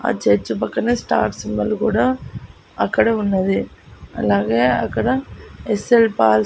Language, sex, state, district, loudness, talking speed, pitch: Telugu, female, Andhra Pradesh, Annamaya, -18 LUFS, 120 wpm, 190 Hz